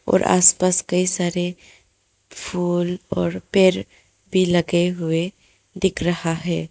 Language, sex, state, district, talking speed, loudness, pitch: Hindi, female, West Bengal, Alipurduar, 125 wpm, -20 LUFS, 175 Hz